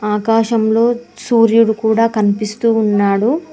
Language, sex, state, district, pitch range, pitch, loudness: Telugu, female, Telangana, Mahabubabad, 215-230 Hz, 225 Hz, -14 LUFS